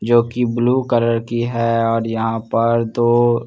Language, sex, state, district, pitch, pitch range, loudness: Hindi, male, Bihar, Katihar, 115 Hz, 115-120 Hz, -17 LUFS